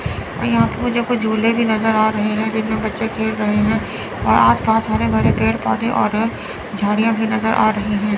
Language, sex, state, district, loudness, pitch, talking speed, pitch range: Hindi, female, Chandigarh, Chandigarh, -17 LUFS, 220 Hz, 220 wpm, 205-225 Hz